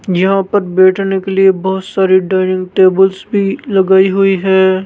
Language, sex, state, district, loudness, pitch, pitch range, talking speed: Hindi, male, Rajasthan, Jaipur, -12 LUFS, 190 Hz, 190-195 Hz, 160 wpm